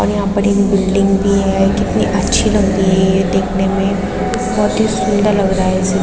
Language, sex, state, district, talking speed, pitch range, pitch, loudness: Hindi, female, Uttarakhand, Tehri Garhwal, 230 wpm, 190-200 Hz, 195 Hz, -14 LUFS